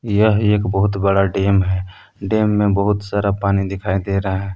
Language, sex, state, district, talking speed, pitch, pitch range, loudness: Hindi, male, Jharkhand, Palamu, 195 wpm, 100 Hz, 95-105 Hz, -18 LUFS